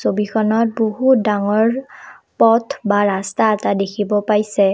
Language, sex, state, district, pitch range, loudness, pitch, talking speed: Assamese, female, Assam, Kamrup Metropolitan, 205-225 Hz, -17 LUFS, 215 Hz, 115 wpm